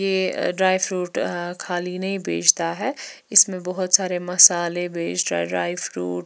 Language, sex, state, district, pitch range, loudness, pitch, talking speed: Hindi, female, Chandigarh, Chandigarh, 165-185 Hz, -20 LUFS, 180 Hz, 155 wpm